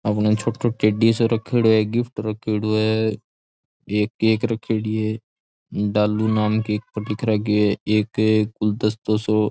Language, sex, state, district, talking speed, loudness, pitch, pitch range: Rajasthani, male, Rajasthan, Churu, 160 wpm, -21 LUFS, 110 Hz, 105-110 Hz